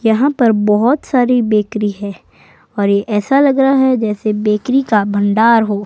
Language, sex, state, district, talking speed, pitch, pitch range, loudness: Hindi, female, Himachal Pradesh, Shimla, 175 wpm, 220 Hz, 210-255 Hz, -13 LUFS